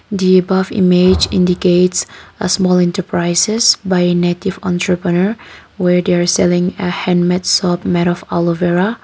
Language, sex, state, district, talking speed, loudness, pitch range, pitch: English, female, Nagaland, Kohima, 135 wpm, -14 LUFS, 175-185 Hz, 180 Hz